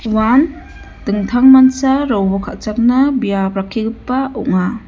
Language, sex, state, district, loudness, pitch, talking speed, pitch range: Garo, female, Meghalaya, West Garo Hills, -14 LUFS, 230 Hz, 85 wpm, 205-265 Hz